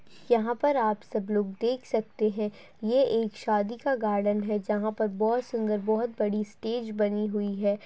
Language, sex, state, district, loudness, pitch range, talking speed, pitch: Hindi, female, Uttarakhand, Uttarkashi, -28 LUFS, 210-235 Hz, 185 wpm, 215 Hz